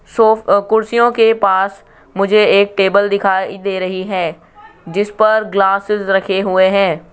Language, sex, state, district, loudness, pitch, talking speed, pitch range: Hindi, male, Rajasthan, Jaipur, -14 LUFS, 200 Hz, 145 wpm, 190-215 Hz